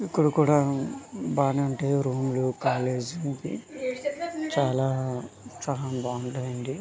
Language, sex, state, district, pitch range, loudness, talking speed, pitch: Telugu, male, Andhra Pradesh, Visakhapatnam, 130-160 Hz, -28 LUFS, 90 wpm, 135 Hz